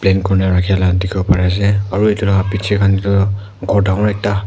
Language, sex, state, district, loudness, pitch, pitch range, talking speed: Nagamese, male, Nagaland, Kohima, -15 LUFS, 100 Hz, 95-100 Hz, 230 wpm